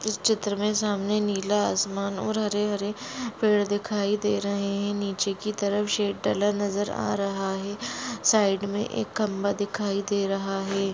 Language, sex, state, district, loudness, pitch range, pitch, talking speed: Hindi, female, Maharashtra, Aurangabad, -26 LUFS, 200-210 Hz, 205 Hz, 170 wpm